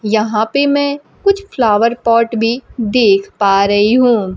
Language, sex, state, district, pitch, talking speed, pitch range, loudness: Hindi, female, Bihar, Kaimur, 230 Hz, 150 wpm, 210-250 Hz, -13 LUFS